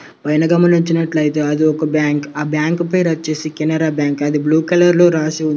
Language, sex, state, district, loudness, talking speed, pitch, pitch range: Telugu, male, Telangana, Komaram Bheem, -15 LUFS, 195 wpm, 155 Hz, 150-165 Hz